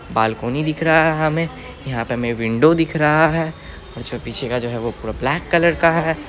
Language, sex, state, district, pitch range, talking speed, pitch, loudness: Hindi, male, Bihar, Araria, 115-160 Hz, 220 wpm, 135 Hz, -18 LUFS